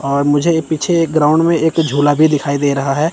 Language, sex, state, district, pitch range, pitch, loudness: Hindi, male, Chandigarh, Chandigarh, 145-160 Hz, 150 Hz, -14 LUFS